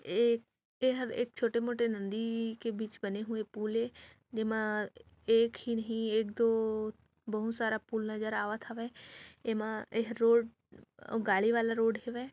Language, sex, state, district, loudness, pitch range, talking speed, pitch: Hindi, female, Chhattisgarh, Raigarh, -33 LUFS, 220-235 Hz, 150 wpm, 225 Hz